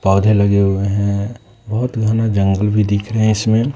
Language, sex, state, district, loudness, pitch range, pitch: Hindi, male, Bihar, West Champaran, -16 LUFS, 100-110 Hz, 105 Hz